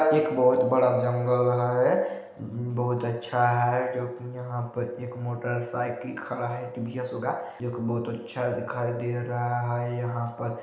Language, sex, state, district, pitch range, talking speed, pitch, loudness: Hindi, male, Chhattisgarh, Balrampur, 120-125 Hz, 165 wpm, 120 Hz, -27 LUFS